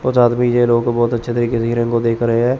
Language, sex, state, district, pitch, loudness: Hindi, male, Chandigarh, Chandigarh, 120 Hz, -16 LUFS